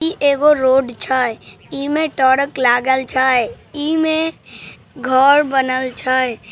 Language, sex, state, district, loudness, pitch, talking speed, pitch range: Maithili, male, Bihar, Samastipur, -16 LUFS, 265 Hz, 110 wpm, 255-290 Hz